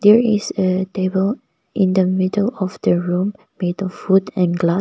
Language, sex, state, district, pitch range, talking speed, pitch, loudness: English, female, Nagaland, Kohima, 185-205 Hz, 175 wpm, 190 Hz, -18 LUFS